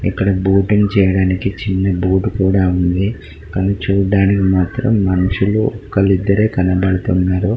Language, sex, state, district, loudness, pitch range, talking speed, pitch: Telugu, male, Telangana, Karimnagar, -15 LUFS, 95-100 Hz, 110 wpm, 95 Hz